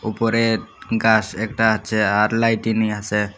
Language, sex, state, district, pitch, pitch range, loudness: Bengali, male, Tripura, Unakoti, 110 Hz, 105-115 Hz, -19 LUFS